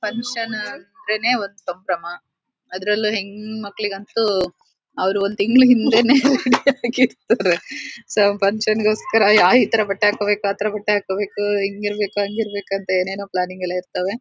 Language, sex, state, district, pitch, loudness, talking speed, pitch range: Kannada, female, Karnataka, Shimoga, 205 Hz, -19 LUFS, 135 wpm, 195-225 Hz